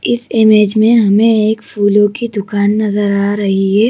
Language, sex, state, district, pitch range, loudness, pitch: Hindi, female, Madhya Pradesh, Bhopal, 205-220 Hz, -12 LUFS, 210 Hz